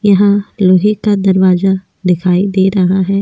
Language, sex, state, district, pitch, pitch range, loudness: Hindi, female, Goa, North and South Goa, 190 Hz, 185-200 Hz, -12 LUFS